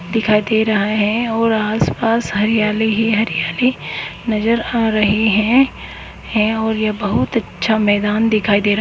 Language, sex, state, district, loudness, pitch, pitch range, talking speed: Hindi, male, West Bengal, Paschim Medinipur, -16 LUFS, 220 Hz, 210-225 Hz, 135 wpm